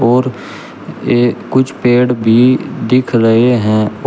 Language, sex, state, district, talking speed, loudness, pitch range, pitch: Hindi, male, Uttar Pradesh, Shamli, 120 wpm, -12 LUFS, 115-125 Hz, 120 Hz